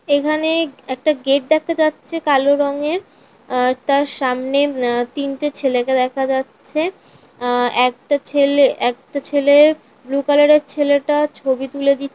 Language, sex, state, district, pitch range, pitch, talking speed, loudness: Bengali, female, West Bengal, North 24 Parganas, 265-295 Hz, 280 Hz, 125 wpm, -17 LUFS